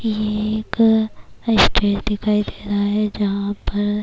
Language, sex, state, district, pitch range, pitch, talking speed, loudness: Urdu, female, Bihar, Kishanganj, 205-215 Hz, 210 Hz, 60 wpm, -19 LUFS